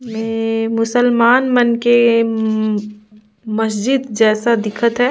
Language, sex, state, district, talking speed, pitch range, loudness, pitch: Surgujia, female, Chhattisgarh, Sarguja, 115 wpm, 215-240 Hz, -15 LUFS, 225 Hz